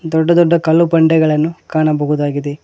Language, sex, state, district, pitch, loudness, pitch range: Kannada, male, Karnataka, Koppal, 160 Hz, -13 LUFS, 150-165 Hz